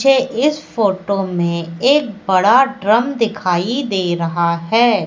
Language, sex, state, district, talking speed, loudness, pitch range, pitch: Hindi, female, Madhya Pradesh, Katni, 130 wpm, -16 LUFS, 180-260 Hz, 210 Hz